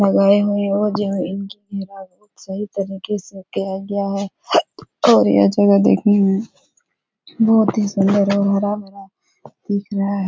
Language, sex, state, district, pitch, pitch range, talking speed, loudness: Hindi, female, Uttar Pradesh, Etah, 200 Hz, 195-205 Hz, 130 wpm, -18 LUFS